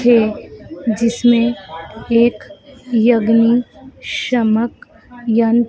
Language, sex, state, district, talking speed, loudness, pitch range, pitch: Hindi, female, Madhya Pradesh, Dhar, 75 wpm, -15 LUFS, 225-245 Hz, 235 Hz